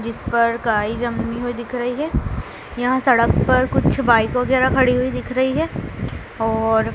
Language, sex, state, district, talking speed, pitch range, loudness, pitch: Hindi, female, Madhya Pradesh, Dhar, 175 wpm, 230-255 Hz, -19 LUFS, 245 Hz